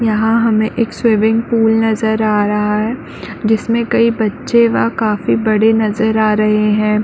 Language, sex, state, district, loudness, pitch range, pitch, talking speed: Hindi, female, Chhattisgarh, Bilaspur, -14 LUFS, 215-230 Hz, 220 Hz, 160 wpm